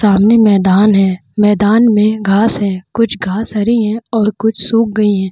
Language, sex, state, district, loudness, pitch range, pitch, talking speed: Hindi, female, Bihar, Vaishali, -12 LUFS, 200-220 Hz, 210 Hz, 180 wpm